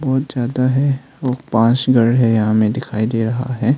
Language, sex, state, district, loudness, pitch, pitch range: Hindi, male, Arunachal Pradesh, Longding, -17 LUFS, 125 Hz, 115-130 Hz